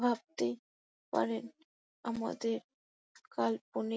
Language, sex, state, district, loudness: Bengali, female, West Bengal, Jhargram, -37 LUFS